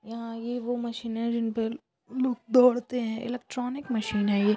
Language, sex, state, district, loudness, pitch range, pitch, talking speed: Hindi, female, Chhattisgarh, Sukma, -28 LUFS, 225-245 Hz, 235 Hz, 170 wpm